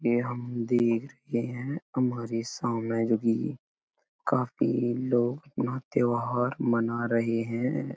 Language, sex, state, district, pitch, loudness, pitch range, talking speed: Hindi, male, Uttar Pradesh, Etah, 120 Hz, -29 LUFS, 115-125 Hz, 115 wpm